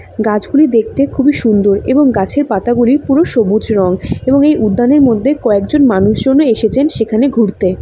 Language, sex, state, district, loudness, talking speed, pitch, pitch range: Bengali, female, West Bengal, Dakshin Dinajpur, -11 LUFS, 145 wpm, 240 Hz, 215-275 Hz